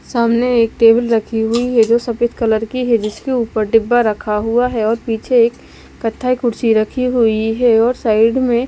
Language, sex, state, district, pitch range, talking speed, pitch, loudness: Hindi, female, Bihar, West Champaran, 225-240 Hz, 200 wpm, 230 Hz, -15 LUFS